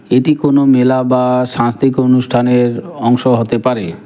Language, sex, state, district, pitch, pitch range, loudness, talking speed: Bengali, male, West Bengal, Cooch Behar, 125 Hz, 120-130 Hz, -13 LUFS, 135 wpm